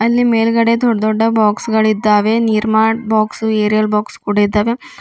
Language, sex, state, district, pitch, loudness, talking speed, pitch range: Kannada, female, Karnataka, Bidar, 220 Hz, -14 LUFS, 145 wpm, 215-230 Hz